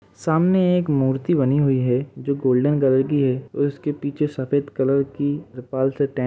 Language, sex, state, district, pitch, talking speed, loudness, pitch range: Hindi, male, Uttar Pradesh, Budaun, 140 Hz, 190 wpm, -21 LUFS, 130-145 Hz